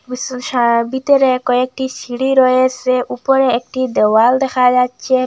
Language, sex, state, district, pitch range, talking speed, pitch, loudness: Bengali, female, Assam, Hailakandi, 250-260 Hz, 100 wpm, 255 Hz, -14 LUFS